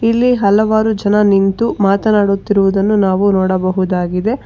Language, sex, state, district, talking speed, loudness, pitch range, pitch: Kannada, female, Karnataka, Bangalore, 95 wpm, -13 LUFS, 195-220 Hz, 200 Hz